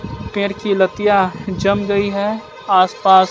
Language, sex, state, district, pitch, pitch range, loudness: Hindi, male, Bihar, West Champaran, 200 Hz, 190-205 Hz, -16 LUFS